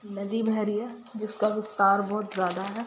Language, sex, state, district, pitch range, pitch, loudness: Hindi, female, Bihar, Gopalganj, 200-220 Hz, 215 Hz, -27 LUFS